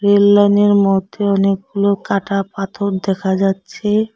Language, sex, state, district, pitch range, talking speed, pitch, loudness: Bengali, female, West Bengal, Cooch Behar, 195-205 Hz, 100 wpm, 200 Hz, -16 LUFS